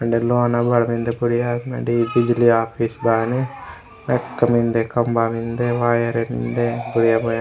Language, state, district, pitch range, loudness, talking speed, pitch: Gondi, Chhattisgarh, Sukma, 115-120 Hz, -19 LUFS, 145 wpm, 115 Hz